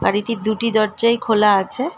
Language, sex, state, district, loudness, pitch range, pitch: Bengali, female, West Bengal, Jalpaiguri, -17 LUFS, 210-230 Hz, 220 Hz